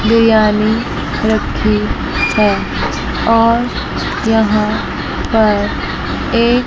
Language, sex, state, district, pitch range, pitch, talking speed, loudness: Hindi, female, Chandigarh, Chandigarh, 215-230 Hz, 225 Hz, 65 wpm, -14 LUFS